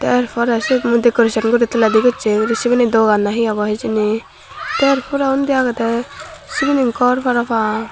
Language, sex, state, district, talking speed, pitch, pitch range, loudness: Chakma, female, Tripura, Dhalai, 165 wpm, 235 Hz, 225-250 Hz, -16 LUFS